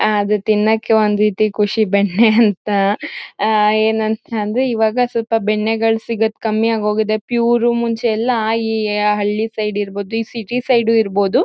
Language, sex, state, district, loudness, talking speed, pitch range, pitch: Kannada, female, Karnataka, Mysore, -16 LUFS, 140 wpm, 210-230 Hz, 220 Hz